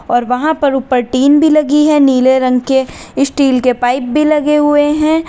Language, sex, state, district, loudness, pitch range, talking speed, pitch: Hindi, female, Uttar Pradesh, Lalitpur, -11 LUFS, 255-300 Hz, 205 wpm, 275 Hz